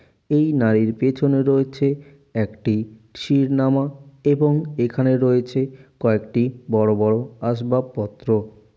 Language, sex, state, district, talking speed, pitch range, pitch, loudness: Bengali, male, West Bengal, Jalpaiguri, 90 wpm, 110-140 Hz, 125 Hz, -20 LUFS